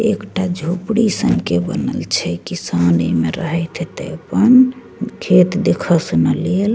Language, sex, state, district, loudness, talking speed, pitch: Maithili, female, Bihar, Begusarai, -16 LUFS, 135 wpm, 175 Hz